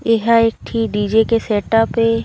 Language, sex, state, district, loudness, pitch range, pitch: Chhattisgarhi, female, Chhattisgarh, Raigarh, -16 LUFS, 225-230 Hz, 225 Hz